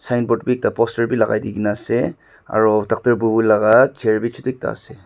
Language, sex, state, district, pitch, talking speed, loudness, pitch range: Nagamese, male, Nagaland, Dimapur, 115 Hz, 240 wpm, -18 LUFS, 110-120 Hz